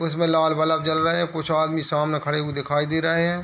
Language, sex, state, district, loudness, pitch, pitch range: Hindi, male, Chhattisgarh, Bilaspur, -22 LUFS, 160 Hz, 150-165 Hz